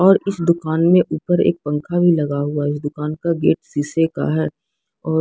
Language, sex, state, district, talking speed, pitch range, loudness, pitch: Hindi, female, Odisha, Sambalpur, 220 wpm, 145-170 Hz, -18 LUFS, 160 Hz